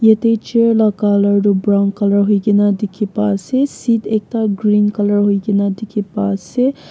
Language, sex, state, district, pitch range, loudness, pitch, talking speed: Nagamese, female, Nagaland, Kohima, 200-220 Hz, -15 LUFS, 205 Hz, 185 wpm